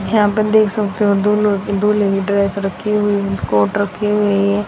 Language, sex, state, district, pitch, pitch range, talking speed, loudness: Hindi, female, Haryana, Rohtak, 205 Hz, 200-210 Hz, 205 wpm, -16 LUFS